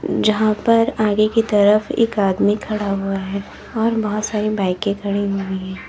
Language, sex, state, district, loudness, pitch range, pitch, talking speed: Hindi, female, Uttar Pradesh, Lalitpur, -18 LUFS, 200-215 Hz, 210 Hz, 175 wpm